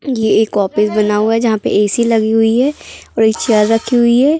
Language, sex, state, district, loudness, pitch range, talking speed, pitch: Hindi, female, Chhattisgarh, Bilaspur, -13 LUFS, 215-235 Hz, 245 wpm, 225 Hz